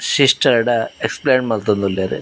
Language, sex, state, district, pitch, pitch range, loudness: Tulu, male, Karnataka, Dakshina Kannada, 115 Hz, 100-130 Hz, -17 LUFS